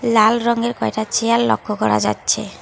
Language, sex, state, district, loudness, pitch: Bengali, female, West Bengal, Alipurduar, -18 LUFS, 225 Hz